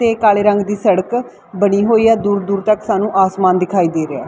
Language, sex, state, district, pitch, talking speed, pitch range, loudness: Punjabi, female, Punjab, Fazilka, 205 Hz, 225 wpm, 190-215 Hz, -14 LUFS